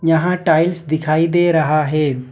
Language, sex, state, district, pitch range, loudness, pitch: Hindi, male, Jharkhand, Ranchi, 155-170 Hz, -16 LUFS, 160 Hz